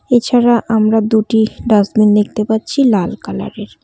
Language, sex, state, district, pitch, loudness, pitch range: Bengali, female, West Bengal, Cooch Behar, 220 Hz, -13 LUFS, 215-235 Hz